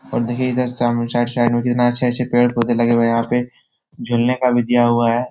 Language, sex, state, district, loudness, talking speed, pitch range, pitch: Hindi, male, Bihar, Jahanabad, -17 LUFS, 235 wpm, 120-125 Hz, 120 Hz